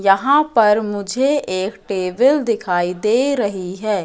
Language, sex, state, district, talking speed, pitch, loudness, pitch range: Hindi, female, Madhya Pradesh, Katni, 135 wpm, 210 Hz, -17 LUFS, 190-255 Hz